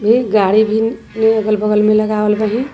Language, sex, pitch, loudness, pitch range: Sadri, female, 215 Hz, -14 LUFS, 210-220 Hz